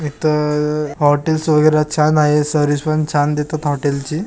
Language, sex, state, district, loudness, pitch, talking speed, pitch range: Marathi, female, Maharashtra, Aurangabad, -16 LUFS, 150 Hz, 155 wpm, 145-155 Hz